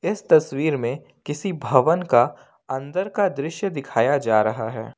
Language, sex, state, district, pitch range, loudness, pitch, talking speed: Hindi, male, Jharkhand, Ranchi, 120-165 Hz, -21 LUFS, 145 Hz, 155 wpm